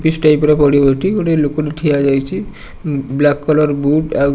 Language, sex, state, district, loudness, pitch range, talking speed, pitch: Odia, male, Odisha, Nuapada, -14 LUFS, 140-155 Hz, 180 wpm, 150 Hz